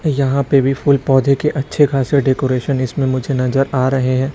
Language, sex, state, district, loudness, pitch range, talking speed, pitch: Hindi, male, Chhattisgarh, Raipur, -16 LUFS, 130-140 Hz, 205 wpm, 135 Hz